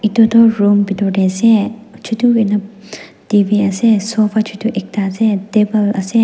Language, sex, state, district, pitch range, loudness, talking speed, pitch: Nagamese, female, Nagaland, Dimapur, 205-225 Hz, -14 LUFS, 155 wpm, 215 Hz